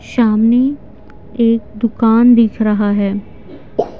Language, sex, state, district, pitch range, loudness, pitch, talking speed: Hindi, female, Bihar, Patna, 215-235 Hz, -14 LUFS, 225 Hz, 90 wpm